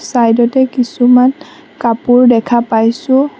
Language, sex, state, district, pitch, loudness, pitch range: Assamese, female, Assam, Sonitpur, 250 Hz, -11 LUFS, 235-265 Hz